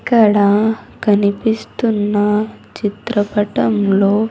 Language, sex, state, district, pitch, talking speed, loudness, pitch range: Telugu, female, Andhra Pradesh, Sri Satya Sai, 210 Hz, 40 wpm, -16 LUFS, 205-220 Hz